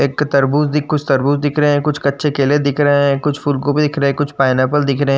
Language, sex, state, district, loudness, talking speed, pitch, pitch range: Hindi, male, Uttar Pradesh, Jyotiba Phule Nagar, -15 LUFS, 280 wpm, 145 Hz, 140-150 Hz